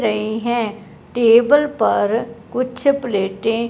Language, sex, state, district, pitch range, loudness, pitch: Hindi, male, Punjab, Fazilka, 215-245 Hz, -18 LUFS, 230 Hz